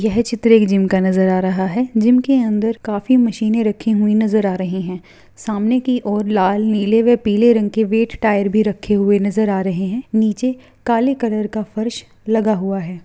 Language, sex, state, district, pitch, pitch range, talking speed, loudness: Hindi, female, Bihar, Bhagalpur, 215 Hz, 200-230 Hz, 210 wpm, -16 LUFS